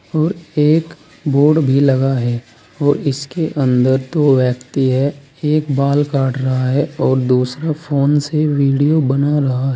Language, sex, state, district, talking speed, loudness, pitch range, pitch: Hindi, male, Uttar Pradesh, Saharanpur, 145 wpm, -16 LUFS, 130-150 Hz, 140 Hz